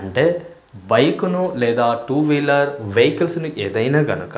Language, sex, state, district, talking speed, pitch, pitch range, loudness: Telugu, male, Andhra Pradesh, Manyam, 125 wpm, 145 Hz, 115-170 Hz, -18 LUFS